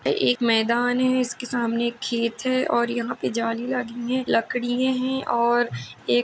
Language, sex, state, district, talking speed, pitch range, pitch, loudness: Hindi, female, Uttar Pradesh, Jalaun, 185 wpm, 235-250 Hz, 240 Hz, -23 LUFS